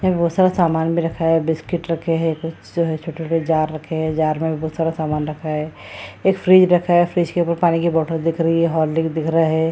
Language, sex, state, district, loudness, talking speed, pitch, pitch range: Hindi, female, Bihar, Jahanabad, -19 LUFS, 245 wpm, 165 Hz, 160-170 Hz